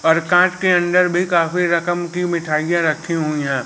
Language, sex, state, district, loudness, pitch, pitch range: Hindi, male, Madhya Pradesh, Katni, -17 LUFS, 170 Hz, 160-180 Hz